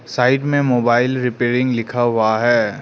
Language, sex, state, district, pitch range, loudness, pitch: Hindi, male, Arunachal Pradesh, Lower Dibang Valley, 120-125 Hz, -17 LUFS, 120 Hz